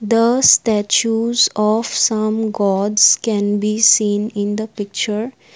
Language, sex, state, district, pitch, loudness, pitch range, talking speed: English, female, Assam, Kamrup Metropolitan, 215 Hz, -15 LUFS, 205-225 Hz, 120 wpm